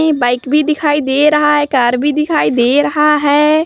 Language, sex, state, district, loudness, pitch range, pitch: Hindi, female, Jharkhand, Palamu, -12 LUFS, 270-300 Hz, 295 Hz